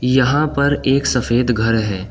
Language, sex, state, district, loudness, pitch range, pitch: Hindi, male, Uttar Pradesh, Shamli, -16 LUFS, 115-140 Hz, 125 Hz